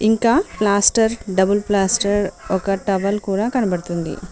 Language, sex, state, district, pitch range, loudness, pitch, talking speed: Telugu, female, Telangana, Mahabubabad, 190-215 Hz, -18 LUFS, 200 Hz, 110 wpm